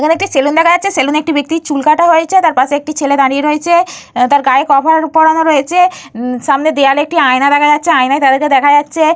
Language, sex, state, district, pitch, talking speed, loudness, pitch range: Bengali, female, Jharkhand, Jamtara, 300 Hz, 210 wpm, -10 LUFS, 280-320 Hz